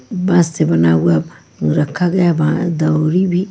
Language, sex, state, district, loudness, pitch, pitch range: Hindi, female, Bihar, Kaimur, -15 LUFS, 165 Hz, 150-180 Hz